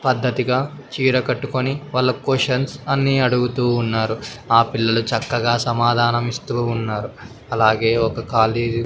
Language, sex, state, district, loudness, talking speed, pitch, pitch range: Telugu, male, Andhra Pradesh, Sri Satya Sai, -19 LUFS, 120 wpm, 120 Hz, 115-130 Hz